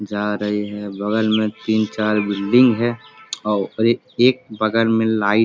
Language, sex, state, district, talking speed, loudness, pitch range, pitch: Hindi, male, Bihar, Jamui, 175 wpm, -19 LUFS, 105-115 Hz, 110 Hz